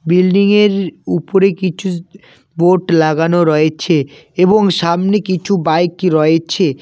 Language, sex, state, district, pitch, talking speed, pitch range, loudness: Bengali, male, West Bengal, Cooch Behar, 175 Hz, 95 wpm, 165-195 Hz, -13 LUFS